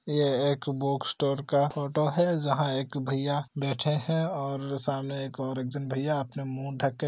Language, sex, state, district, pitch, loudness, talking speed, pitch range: Hindi, male, Chhattisgarh, Bastar, 140 Hz, -29 LUFS, 195 wpm, 135-145 Hz